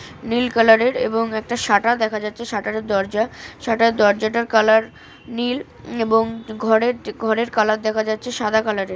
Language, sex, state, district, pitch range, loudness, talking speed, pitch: Bengali, female, West Bengal, North 24 Parganas, 215-235 Hz, -19 LUFS, 160 wpm, 220 Hz